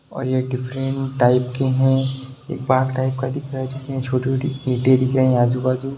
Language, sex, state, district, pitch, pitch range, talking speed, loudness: Hindi, male, Bihar, Sitamarhi, 130 Hz, 130-135 Hz, 190 wpm, -20 LUFS